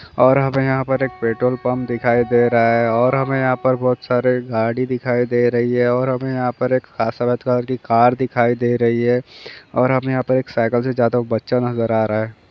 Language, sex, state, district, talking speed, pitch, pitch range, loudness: Hindi, male, Maharashtra, Nagpur, 235 wpm, 125 Hz, 120-130 Hz, -18 LUFS